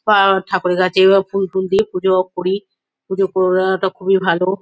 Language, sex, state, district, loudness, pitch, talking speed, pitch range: Bengali, female, West Bengal, Kolkata, -16 LUFS, 190 Hz, 170 wpm, 185-195 Hz